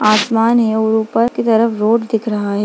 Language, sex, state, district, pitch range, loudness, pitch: Hindi, female, Bihar, Darbhanga, 215-230 Hz, -15 LUFS, 225 Hz